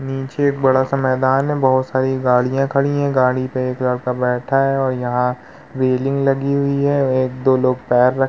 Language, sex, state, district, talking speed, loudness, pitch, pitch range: Hindi, male, Uttar Pradesh, Muzaffarnagar, 205 wpm, -17 LUFS, 130 Hz, 130-135 Hz